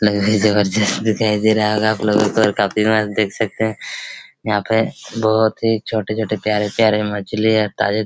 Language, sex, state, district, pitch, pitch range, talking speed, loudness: Hindi, male, Chhattisgarh, Raigarh, 110 Hz, 105-110 Hz, 195 wpm, -17 LUFS